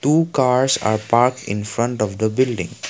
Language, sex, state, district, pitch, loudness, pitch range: English, male, Assam, Kamrup Metropolitan, 120 Hz, -19 LUFS, 110-130 Hz